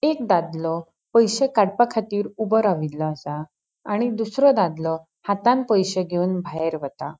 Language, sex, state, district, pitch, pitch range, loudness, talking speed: Konkani, female, Goa, North and South Goa, 195 Hz, 165-225 Hz, -22 LUFS, 125 wpm